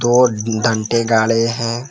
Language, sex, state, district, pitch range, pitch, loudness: Hindi, male, Jharkhand, Palamu, 115-120 Hz, 115 Hz, -16 LUFS